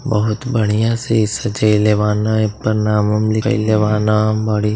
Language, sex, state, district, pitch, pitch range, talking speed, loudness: Bhojpuri, male, Uttar Pradesh, Deoria, 110 Hz, 105-110 Hz, 150 wpm, -16 LUFS